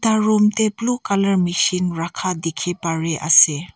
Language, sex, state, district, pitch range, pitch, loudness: Nagamese, female, Nagaland, Kohima, 165-210 Hz, 180 Hz, -18 LUFS